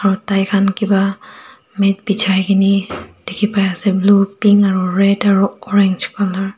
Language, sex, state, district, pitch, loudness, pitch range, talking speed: Nagamese, female, Nagaland, Dimapur, 195 Hz, -15 LUFS, 195-200 Hz, 165 wpm